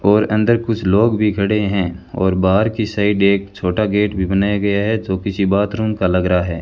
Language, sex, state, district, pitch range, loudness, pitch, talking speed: Hindi, male, Rajasthan, Bikaner, 95-105 Hz, -17 LUFS, 100 Hz, 225 wpm